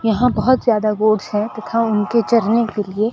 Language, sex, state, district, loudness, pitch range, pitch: Hindi, female, Rajasthan, Bikaner, -17 LUFS, 215-230 Hz, 220 Hz